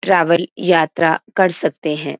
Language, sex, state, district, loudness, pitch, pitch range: Hindi, female, Uttarakhand, Uttarkashi, -17 LUFS, 170 Hz, 160-180 Hz